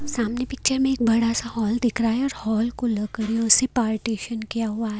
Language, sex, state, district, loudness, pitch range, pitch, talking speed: Hindi, female, Haryana, Jhajjar, -23 LUFS, 220-245 Hz, 230 Hz, 240 wpm